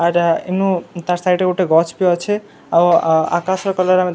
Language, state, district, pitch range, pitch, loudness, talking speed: Sambalpuri, Odisha, Sambalpur, 170-185 Hz, 180 Hz, -16 LUFS, 190 wpm